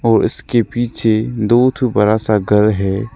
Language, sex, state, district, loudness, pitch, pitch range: Hindi, male, Arunachal Pradesh, Lower Dibang Valley, -15 LUFS, 110 Hz, 105-120 Hz